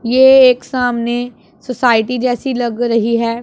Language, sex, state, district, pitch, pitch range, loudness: Hindi, female, Punjab, Pathankot, 245 Hz, 235-250 Hz, -13 LUFS